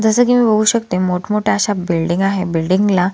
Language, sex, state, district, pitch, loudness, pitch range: Marathi, female, Maharashtra, Solapur, 195 Hz, -15 LUFS, 180-215 Hz